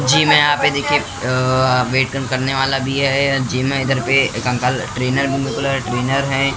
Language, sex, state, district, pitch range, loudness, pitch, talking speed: Hindi, male, Maharashtra, Mumbai Suburban, 130-140 Hz, -17 LUFS, 135 Hz, 210 wpm